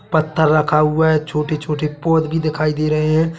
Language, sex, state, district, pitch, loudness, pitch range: Hindi, male, Chhattisgarh, Bilaspur, 155 Hz, -17 LUFS, 150-160 Hz